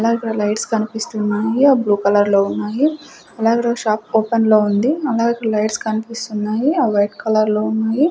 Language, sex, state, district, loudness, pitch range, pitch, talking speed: Telugu, female, Andhra Pradesh, Sri Satya Sai, -17 LUFS, 210-235 Hz, 220 Hz, 180 wpm